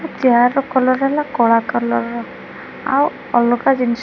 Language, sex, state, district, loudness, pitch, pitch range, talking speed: Odia, female, Odisha, Khordha, -16 LUFS, 245 Hz, 235-270 Hz, 165 wpm